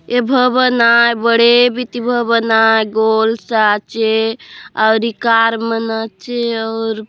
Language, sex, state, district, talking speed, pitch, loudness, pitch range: Halbi, female, Chhattisgarh, Bastar, 145 wpm, 230 Hz, -14 LUFS, 225-240 Hz